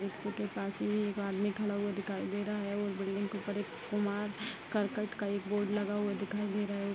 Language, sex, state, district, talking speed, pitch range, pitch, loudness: Hindi, female, Bihar, Vaishali, 235 wpm, 200-210 Hz, 205 Hz, -36 LUFS